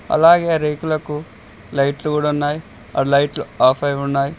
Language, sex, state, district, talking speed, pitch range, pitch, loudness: Telugu, male, Telangana, Mahabubabad, 150 wpm, 140-155 Hz, 150 Hz, -18 LUFS